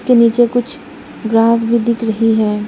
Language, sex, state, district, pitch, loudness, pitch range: Hindi, female, Arunachal Pradesh, Lower Dibang Valley, 230 Hz, -13 LUFS, 225-245 Hz